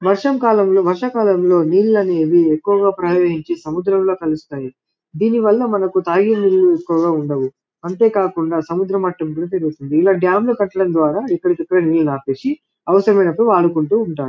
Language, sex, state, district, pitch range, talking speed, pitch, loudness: Telugu, male, Telangana, Karimnagar, 165-200 Hz, 145 wpm, 185 Hz, -16 LUFS